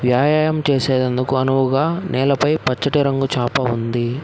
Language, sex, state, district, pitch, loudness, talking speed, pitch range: Telugu, male, Telangana, Hyderabad, 135 Hz, -18 LUFS, 115 wpm, 125-145 Hz